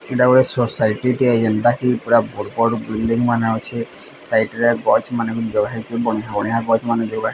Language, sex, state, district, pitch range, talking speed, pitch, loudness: Odia, male, Odisha, Sambalpur, 110-120 Hz, 180 wpm, 115 Hz, -18 LUFS